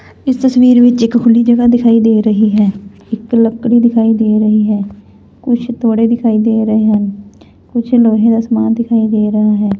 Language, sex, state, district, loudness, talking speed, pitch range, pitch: Punjabi, female, Punjab, Fazilka, -11 LUFS, 185 wpm, 215-235 Hz, 225 Hz